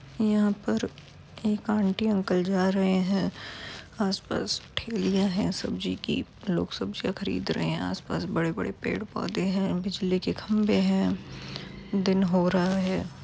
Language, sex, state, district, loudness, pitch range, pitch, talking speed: Hindi, female, Uttar Pradesh, Varanasi, -27 LUFS, 180-200 Hz, 190 Hz, 145 wpm